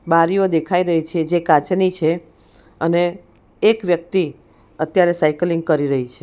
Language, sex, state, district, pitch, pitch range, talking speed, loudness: Gujarati, female, Gujarat, Valsad, 170 Hz, 160-180 Hz, 145 wpm, -18 LUFS